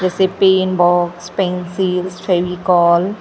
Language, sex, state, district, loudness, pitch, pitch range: Hindi, female, Maharashtra, Gondia, -15 LUFS, 180 Hz, 175-185 Hz